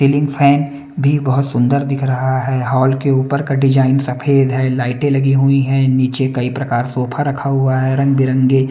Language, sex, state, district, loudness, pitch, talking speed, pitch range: Hindi, male, Bihar, West Champaran, -15 LUFS, 135 Hz, 195 wpm, 130-140 Hz